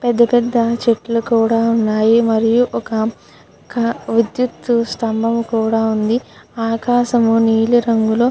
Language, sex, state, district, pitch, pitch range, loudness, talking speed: Telugu, female, Andhra Pradesh, Krishna, 230 Hz, 225-235 Hz, -16 LUFS, 95 wpm